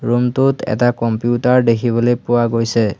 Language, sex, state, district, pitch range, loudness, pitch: Assamese, male, Assam, Hailakandi, 115-120 Hz, -16 LUFS, 120 Hz